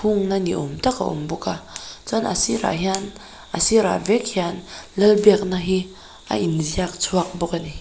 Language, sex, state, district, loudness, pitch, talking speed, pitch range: Mizo, female, Mizoram, Aizawl, -21 LUFS, 185 Hz, 190 wpm, 170-205 Hz